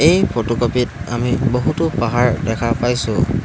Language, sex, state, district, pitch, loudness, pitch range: Assamese, male, Assam, Hailakandi, 120 Hz, -18 LUFS, 115-125 Hz